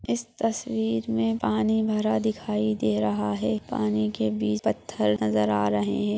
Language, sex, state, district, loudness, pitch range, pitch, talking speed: Hindi, female, Bihar, Jahanabad, -26 LUFS, 105-110 Hz, 105 Hz, 165 wpm